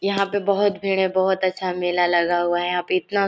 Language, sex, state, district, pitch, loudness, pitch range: Hindi, female, Chhattisgarh, Korba, 185 Hz, -21 LUFS, 175-200 Hz